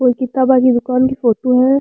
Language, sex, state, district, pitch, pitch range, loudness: Rajasthani, female, Rajasthan, Churu, 255 Hz, 250-260 Hz, -14 LUFS